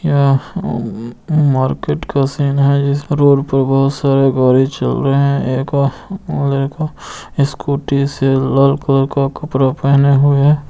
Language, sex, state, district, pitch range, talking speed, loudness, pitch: Hindi, male, Bihar, Saran, 135-140 Hz, 155 wpm, -14 LUFS, 140 Hz